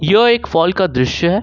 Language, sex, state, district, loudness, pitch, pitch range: Hindi, male, Jharkhand, Ranchi, -14 LUFS, 185 Hz, 165-210 Hz